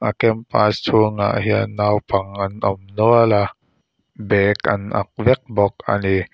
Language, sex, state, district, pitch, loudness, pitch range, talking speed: Mizo, male, Mizoram, Aizawl, 105 Hz, -18 LUFS, 100-110 Hz, 140 wpm